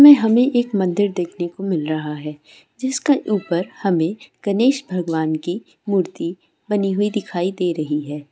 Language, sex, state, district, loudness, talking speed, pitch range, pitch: Hindi, female, Andhra Pradesh, Guntur, -20 LUFS, 160 wpm, 170-215 Hz, 190 Hz